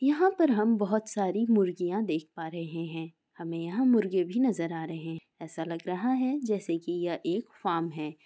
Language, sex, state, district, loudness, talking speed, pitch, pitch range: Hindi, female, Bihar, East Champaran, -29 LUFS, 205 wpm, 175 Hz, 165-220 Hz